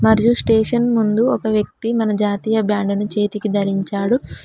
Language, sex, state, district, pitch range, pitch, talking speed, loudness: Telugu, female, Telangana, Mahabubabad, 205-225 Hz, 215 Hz, 150 wpm, -18 LUFS